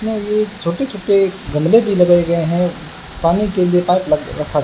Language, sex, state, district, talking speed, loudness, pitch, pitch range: Hindi, male, Rajasthan, Bikaner, 155 wpm, -16 LUFS, 180 Hz, 170-205 Hz